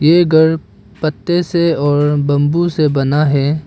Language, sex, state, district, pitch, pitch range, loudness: Hindi, female, Arunachal Pradesh, Papum Pare, 150 Hz, 145-165 Hz, -14 LUFS